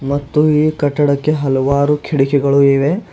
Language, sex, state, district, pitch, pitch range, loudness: Kannada, male, Karnataka, Bidar, 145 Hz, 140-150 Hz, -14 LUFS